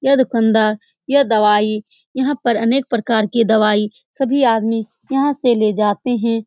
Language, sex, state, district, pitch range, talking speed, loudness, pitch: Hindi, female, Bihar, Saran, 215-260 Hz, 175 wpm, -16 LUFS, 230 Hz